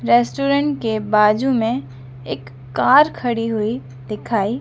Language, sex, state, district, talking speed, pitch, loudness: Hindi, female, Madhya Pradesh, Dhar, 115 wpm, 210 Hz, -18 LUFS